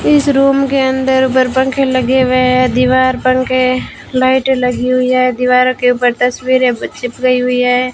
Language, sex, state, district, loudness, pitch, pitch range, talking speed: Hindi, female, Rajasthan, Bikaner, -12 LUFS, 255 Hz, 250-260 Hz, 165 wpm